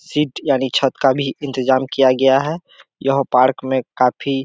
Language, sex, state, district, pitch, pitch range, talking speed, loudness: Hindi, male, Bihar, Kishanganj, 135 Hz, 130-140 Hz, 190 wpm, -17 LUFS